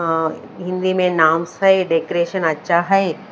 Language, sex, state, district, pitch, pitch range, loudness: Hindi, female, Chhattisgarh, Raipur, 175 Hz, 165-185 Hz, -17 LUFS